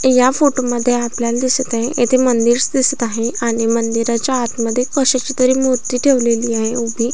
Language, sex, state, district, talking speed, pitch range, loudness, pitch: Marathi, female, Maharashtra, Aurangabad, 150 wpm, 235-255 Hz, -15 LUFS, 245 Hz